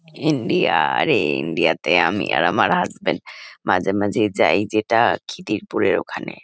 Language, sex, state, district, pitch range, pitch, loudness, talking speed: Bengali, female, West Bengal, Kolkata, 100-155 Hz, 110 Hz, -19 LUFS, 120 wpm